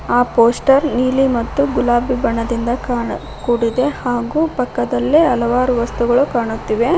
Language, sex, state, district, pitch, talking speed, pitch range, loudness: Kannada, female, Karnataka, Koppal, 245 Hz, 110 wpm, 235-260 Hz, -16 LUFS